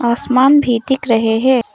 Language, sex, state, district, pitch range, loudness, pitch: Hindi, female, Arunachal Pradesh, Papum Pare, 230-265 Hz, -13 LUFS, 245 Hz